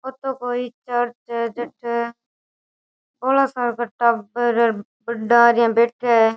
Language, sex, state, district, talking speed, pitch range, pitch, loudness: Rajasthani, female, Rajasthan, Churu, 115 wpm, 235-245 Hz, 235 Hz, -20 LUFS